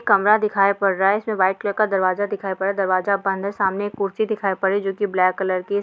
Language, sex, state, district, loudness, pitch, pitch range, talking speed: Hindi, female, Bihar, Darbhanga, -20 LUFS, 195 Hz, 190-205 Hz, 300 wpm